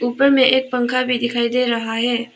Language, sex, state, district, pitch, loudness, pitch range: Hindi, female, Arunachal Pradesh, Papum Pare, 245 Hz, -17 LUFS, 240-255 Hz